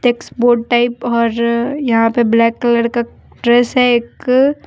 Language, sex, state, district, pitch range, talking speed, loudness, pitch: Hindi, female, Jharkhand, Deoghar, 235-245 Hz, 140 wpm, -14 LUFS, 240 Hz